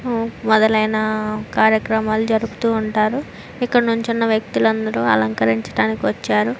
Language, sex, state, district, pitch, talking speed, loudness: Telugu, female, Andhra Pradesh, Chittoor, 220 Hz, 90 wpm, -18 LUFS